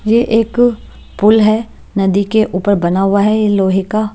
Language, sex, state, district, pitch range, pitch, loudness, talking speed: Hindi, female, Himachal Pradesh, Shimla, 195-220 Hz, 210 Hz, -13 LUFS, 190 wpm